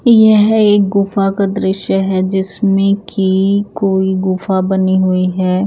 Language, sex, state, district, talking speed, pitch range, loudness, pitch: Hindi, male, Odisha, Nuapada, 140 wpm, 190-200 Hz, -13 LUFS, 195 Hz